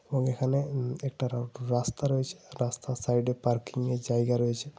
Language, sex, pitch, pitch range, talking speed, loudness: Bengali, male, 125 Hz, 120-135 Hz, 150 wpm, -30 LUFS